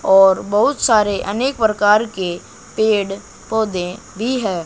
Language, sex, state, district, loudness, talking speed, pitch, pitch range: Hindi, female, Haryana, Charkhi Dadri, -17 LUFS, 130 wpm, 205 Hz, 190-220 Hz